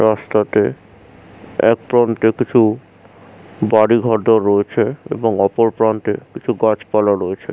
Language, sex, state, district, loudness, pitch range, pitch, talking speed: Bengali, male, West Bengal, Jhargram, -16 LUFS, 105-115 Hz, 110 Hz, 90 wpm